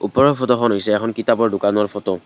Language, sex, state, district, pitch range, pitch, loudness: Assamese, male, Assam, Kamrup Metropolitan, 100-120 Hz, 105 Hz, -18 LUFS